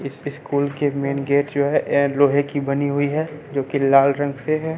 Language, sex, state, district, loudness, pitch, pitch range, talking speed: Hindi, male, Bihar, Katihar, -20 LUFS, 140 Hz, 140-145 Hz, 240 wpm